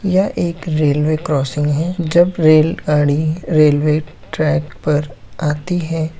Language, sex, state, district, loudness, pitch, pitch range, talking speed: Hindi, male, Bihar, Samastipur, -16 LUFS, 155 Hz, 150-165 Hz, 115 wpm